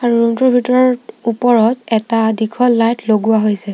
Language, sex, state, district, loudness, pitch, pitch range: Assamese, female, Assam, Sonitpur, -14 LUFS, 230 Hz, 220-245 Hz